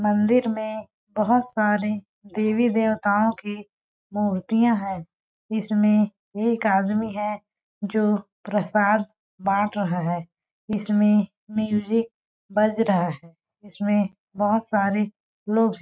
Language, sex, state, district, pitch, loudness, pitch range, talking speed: Hindi, female, Chhattisgarh, Balrampur, 210 Hz, -23 LUFS, 205-215 Hz, 100 wpm